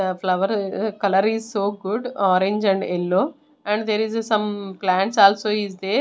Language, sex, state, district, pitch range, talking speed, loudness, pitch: English, female, Haryana, Rohtak, 195-215 Hz, 200 wpm, -21 LUFS, 205 Hz